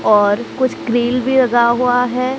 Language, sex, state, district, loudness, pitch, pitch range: Hindi, female, Odisha, Sambalpur, -15 LUFS, 245 Hz, 240-255 Hz